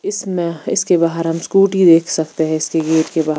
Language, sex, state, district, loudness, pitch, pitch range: Hindi, female, Chandigarh, Chandigarh, -15 LUFS, 165 Hz, 160-180 Hz